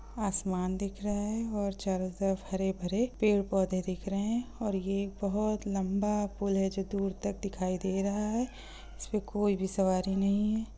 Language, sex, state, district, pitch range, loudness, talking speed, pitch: Hindi, female, Bihar, Gopalganj, 190-210 Hz, -32 LUFS, 165 wpm, 200 Hz